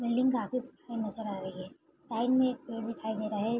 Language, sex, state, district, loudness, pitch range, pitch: Hindi, female, Bihar, Araria, -33 LUFS, 215-255 Hz, 230 Hz